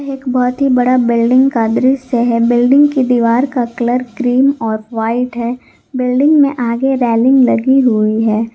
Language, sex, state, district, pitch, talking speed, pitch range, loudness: Hindi, female, Jharkhand, Garhwa, 250 Hz, 170 wpm, 235-265 Hz, -13 LUFS